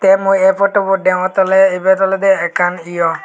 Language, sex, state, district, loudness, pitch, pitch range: Chakma, male, Tripura, Unakoti, -13 LUFS, 190 Hz, 180-195 Hz